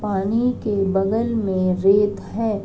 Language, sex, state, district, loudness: Hindi, female, Uttar Pradesh, Varanasi, -20 LUFS